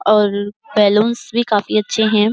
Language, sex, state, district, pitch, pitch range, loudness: Hindi, female, Uttar Pradesh, Jyotiba Phule Nagar, 215 Hz, 205-220 Hz, -16 LUFS